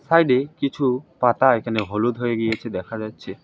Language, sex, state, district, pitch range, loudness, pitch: Bengali, male, West Bengal, Alipurduar, 110-130 Hz, -21 LUFS, 120 Hz